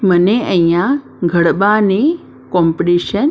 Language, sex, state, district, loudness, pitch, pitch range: Gujarati, female, Maharashtra, Mumbai Suburban, -14 LUFS, 185 Hz, 175-215 Hz